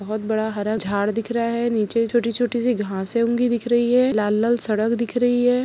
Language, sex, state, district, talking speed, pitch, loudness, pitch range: Hindi, female, Chhattisgarh, Kabirdham, 210 wpm, 230 Hz, -20 LUFS, 215-240 Hz